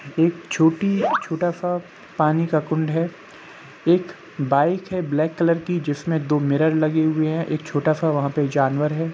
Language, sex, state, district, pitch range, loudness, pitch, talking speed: Hindi, male, Bihar, Gopalganj, 150-170 Hz, -21 LUFS, 160 Hz, 165 wpm